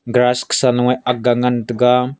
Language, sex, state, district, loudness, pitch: Wancho, male, Arunachal Pradesh, Longding, -16 LUFS, 125 Hz